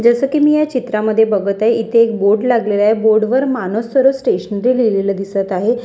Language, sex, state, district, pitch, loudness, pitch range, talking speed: Marathi, female, Maharashtra, Washim, 225 Hz, -15 LUFS, 205-250 Hz, 205 wpm